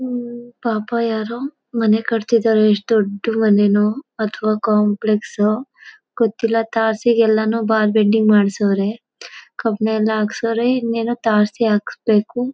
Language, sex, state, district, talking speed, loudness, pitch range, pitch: Kannada, female, Karnataka, Mysore, 105 wpm, -18 LUFS, 215-235 Hz, 220 Hz